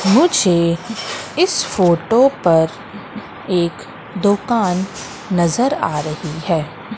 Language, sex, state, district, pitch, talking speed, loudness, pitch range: Hindi, female, Madhya Pradesh, Katni, 185 Hz, 85 wpm, -17 LUFS, 170-225 Hz